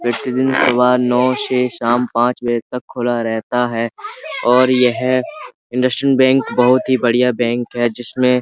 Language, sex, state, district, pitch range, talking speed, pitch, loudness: Hindi, male, Uttar Pradesh, Budaun, 120-130 Hz, 130 wpm, 125 Hz, -16 LUFS